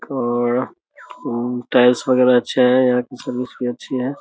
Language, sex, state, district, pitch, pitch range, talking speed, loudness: Hindi, male, Bihar, Muzaffarpur, 125 Hz, 120-125 Hz, 170 wpm, -18 LUFS